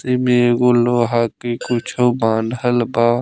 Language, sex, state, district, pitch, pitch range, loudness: Bhojpuri, male, Bihar, Muzaffarpur, 120 Hz, 120-125 Hz, -17 LUFS